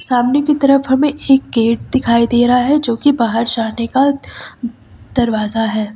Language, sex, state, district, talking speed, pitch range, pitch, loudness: Hindi, female, Uttar Pradesh, Lucknow, 170 wpm, 230-275 Hz, 245 Hz, -14 LUFS